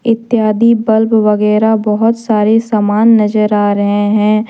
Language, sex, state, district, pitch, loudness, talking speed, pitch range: Hindi, female, Jharkhand, Deoghar, 215 Hz, -11 LUFS, 135 wpm, 210-225 Hz